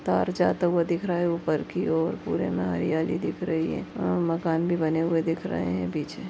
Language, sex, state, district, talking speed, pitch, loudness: Hindi, female, Uttar Pradesh, Deoria, 210 wpm, 160 Hz, -26 LUFS